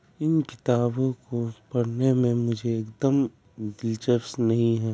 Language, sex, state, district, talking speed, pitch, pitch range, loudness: Hindi, male, Bihar, Kishanganj, 120 wpm, 120 Hz, 115-130 Hz, -25 LUFS